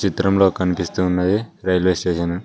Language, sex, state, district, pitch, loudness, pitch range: Telugu, male, Telangana, Mahabubabad, 90 Hz, -19 LUFS, 90-95 Hz